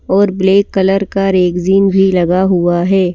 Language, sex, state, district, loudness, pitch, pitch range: Hindi, female, Madhya Pradesh, Bhopal, -12 LUFS, 190 Hz, 180-195 Hz